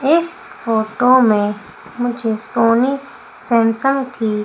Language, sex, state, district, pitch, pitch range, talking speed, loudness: Hindi, female, Madhya Pradesh, Umaria, 230 Hz, 220-260 Hz, 95 wpm, -16 LUFS